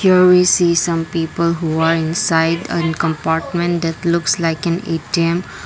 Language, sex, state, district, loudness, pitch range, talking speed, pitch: English, female, Assam, Kamrup Metropolitan, -16 LUFS, 165-170 Hz, 160 wpm, 170 Hz